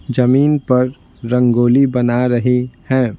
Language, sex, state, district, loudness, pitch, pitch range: Hindi, male, Bihar, Patna, -15 LUFS, 125 Hz, 125-130 Hz